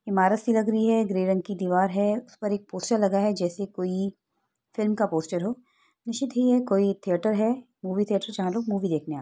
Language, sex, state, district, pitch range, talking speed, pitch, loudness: Hindi, female, Uttar Pradesh, Etah, 190-225 Hz, 225 wpm, 205 Hz, -26 LUFS